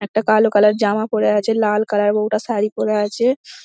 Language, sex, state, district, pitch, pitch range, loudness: Bengali, female, West Bengal, Dakshin Dinajpur, 215 Hz, 210-220 Hz, -17 LUFS